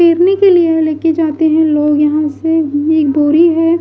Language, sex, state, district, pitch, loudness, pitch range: Hindi, female, Maharashtra, Gondia, 320 Hz, -11 LUFS, 300-330 Hz